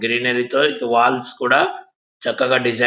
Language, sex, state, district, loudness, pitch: Telugu, male, Andhra Pradesh, Visakhapatnam, -18 LUFS, 125 Hz